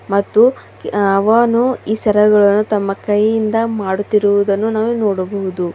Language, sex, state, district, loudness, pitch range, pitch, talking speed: Kannada, female, Karnataka, Bidar, -15 LUFS, 200-220 Hz, 210 Hz, 105 wpm